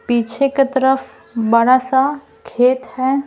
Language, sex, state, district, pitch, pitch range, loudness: Hindi, female, Bihar, Patna, 260 Hz, 245-270 Hz, -16 LUFS